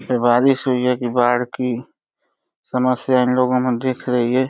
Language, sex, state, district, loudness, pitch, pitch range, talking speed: Hindi, male, Uttar Pradesh, Deoria, -18 LUFS, 125 Hz, 125-130 Hz, 135 wpm